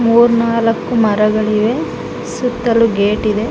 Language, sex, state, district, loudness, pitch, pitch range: Kannada, female, Karnataka, Mysore, -14 LUFS, 230 Hz, 215-235 Hz